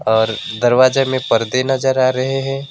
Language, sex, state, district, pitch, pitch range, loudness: Hindi, male, West Bengal, Alipurduar, 130 Hz, 115-135 Hz, -16 LUFS